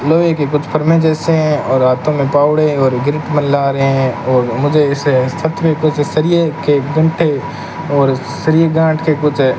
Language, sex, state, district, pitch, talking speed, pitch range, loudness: Hindi, male, Rajasthan, Bikaner, 150 Hz, 200 wpm, 140-160 Hz, -13 LUFS